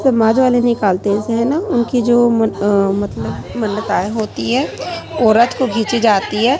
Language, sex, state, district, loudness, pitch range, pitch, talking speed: Hindi, female, Chhattisgarh, Raipur, -15 LUFS, 210-245 Hz, 230 Hz, 180 wpm